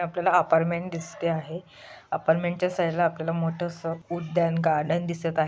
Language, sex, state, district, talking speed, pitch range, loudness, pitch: Marathi, female, Maharashtra, Solapur, 165 wpm, 165-175 Hz, -26 LUFS, 165 Hz